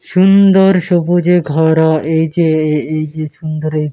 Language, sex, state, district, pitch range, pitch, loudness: Bengali, male, West Bengal, Malda, 155-175 Hz, 160 Hz, -12 LUFS